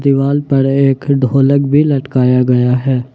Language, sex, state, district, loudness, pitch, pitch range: Hindi, male, Jharkhand, Ranchi, -12 LUFS, 135 Hz, 130-140 Hz